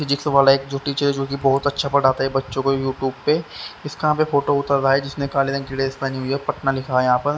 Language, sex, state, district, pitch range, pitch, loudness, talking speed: Hindi, male, Haryana, Rohtak, 135-140 Hz, 140 Hz, -20 LUFS, 300 wpm